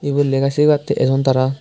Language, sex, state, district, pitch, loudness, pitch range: Chakma, male, Tripura, West Tripura, 140 Hz, -16 LUFS, 135-145 Hz